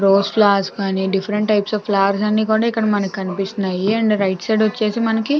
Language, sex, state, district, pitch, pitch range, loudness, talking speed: Telugu, female, Andhra Pradesh, Chittoor, 205 Hz, 195-215 Hz, -18 LUFS, 165 wpm